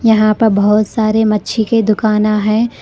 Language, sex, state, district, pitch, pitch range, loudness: Hindi, female, Karnataka, Koppal, 215 Hz, 215-220 Hz, -13 LUFS